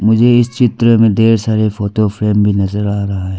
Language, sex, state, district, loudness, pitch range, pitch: Hindi, female, Arunachal Pradesh, Lower Dibang Valley, -13 LUFS, 100-115 Hz, 105 Hz